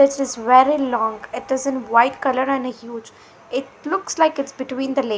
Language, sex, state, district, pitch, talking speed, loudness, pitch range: English, female, Punjab, Fazilka, 265 Hz, 230 wpm, -20 LUFS, 245-275 Hz